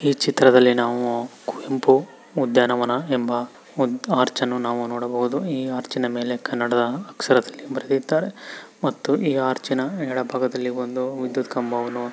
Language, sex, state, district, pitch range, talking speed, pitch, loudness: Kannada, male, Karnataka, Mysore, 120-130 Hz, 120 wpm, 125 Hz, -22 LUFS